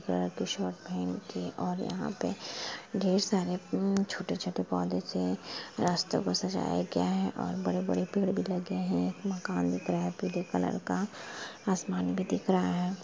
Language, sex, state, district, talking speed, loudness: Hindi, female, Chhattisgarh, Rajnandgaon, 170 wpm, -32 LUFS